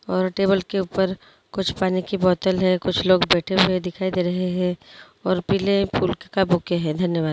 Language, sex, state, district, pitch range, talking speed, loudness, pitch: Hindi, female, Chhattisgarh, Korba, 180-190 Hz, 195 wpm, -21 LUFS, 185 Hz